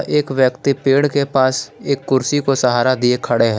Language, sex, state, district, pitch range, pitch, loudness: Hindi, male, Jharkhand, Palamu, 125-140 Hz, 135 Hz, -16 LUFS